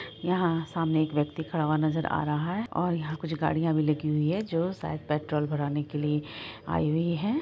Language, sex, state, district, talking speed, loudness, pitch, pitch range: Hindi, female, Bihar, Araria, 200 wpm, -29 LUFS, 160 Hz, 150-170 Hz